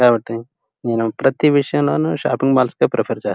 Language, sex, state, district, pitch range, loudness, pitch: Telugu, male, Andhra Pradesh, Krishna, 110-130 Hz, -17 LUFS, 115 Hz